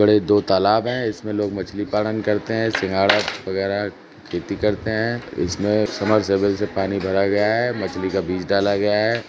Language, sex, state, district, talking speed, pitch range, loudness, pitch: Hindi, male, Uttar Pradesh, Jalaun, 180 wpm, 95-105 Hz, -21 LUFS, 105 Hz